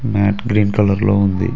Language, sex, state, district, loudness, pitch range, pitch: Telugu, male, Telangana, Mahabubabad, -16 LUFS, 100-105 Hz, 100 Hz